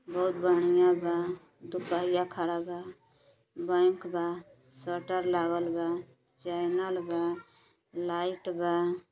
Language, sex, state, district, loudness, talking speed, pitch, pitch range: Bhojpuri, female, Uttar Pradesh, Deoria, -30 LUFS, 100 wpm, 175 Hz, 170-180 Hz